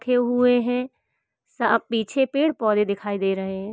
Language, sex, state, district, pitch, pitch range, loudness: Hindi, female, Uttar Pradesh, Varanasi, 230 Hz, 205-250 Hz, -22 LUFS